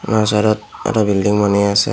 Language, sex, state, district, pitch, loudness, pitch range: Assamese, male, Assam, Hailakandi, 105 Hz, -16 LUFS, 100-110 Hz